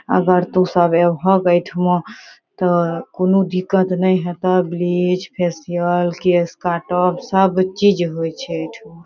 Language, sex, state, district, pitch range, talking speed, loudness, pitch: Maithili, female, Bihar, Saharsa, 175-185 Hz, 125 wpm, -17 LUFS, 180 Hz